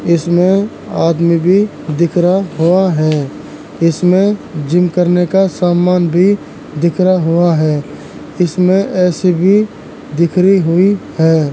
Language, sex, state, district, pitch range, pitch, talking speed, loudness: Hindi, male, Uttar Pradesh, Jalaun, 165-185 Hz, 175 Hz, 120 wpm, -13 LUFS